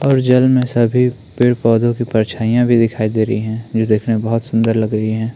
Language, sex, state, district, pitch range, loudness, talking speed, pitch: Hindi, male, Uttarakhand, Tehri Garhwal, 110-120 Hz, -15 LUFS, 235 wpm, 115 Hz